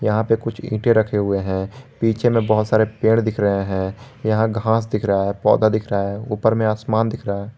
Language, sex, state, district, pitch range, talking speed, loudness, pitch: Hindi, male, Jharkhand, Garhwa, 100-115 Hz, 235 wpm, -19 LUFS, 110 Hz